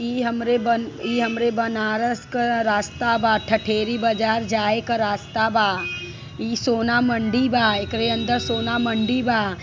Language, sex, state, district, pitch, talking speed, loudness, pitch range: Bhojpuri, female, Uttar Pradesh, Varanasi, 230 Hz, 150 wpm, -21 LUFS, 220-235 Hz